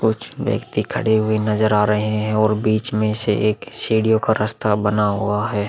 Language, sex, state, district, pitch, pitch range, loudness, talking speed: Hindi, male, Uttar Pradesh, Muzaffarnagar, 110 Hz, 105-110 Hz, -19 LUFS, 200 wpm